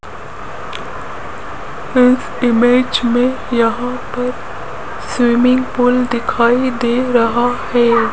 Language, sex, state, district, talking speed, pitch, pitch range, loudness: Hindi, female, Rajasthan, Jaipur, 80 wpm, 245 Hz, 235-250 Hz, -14 LUFS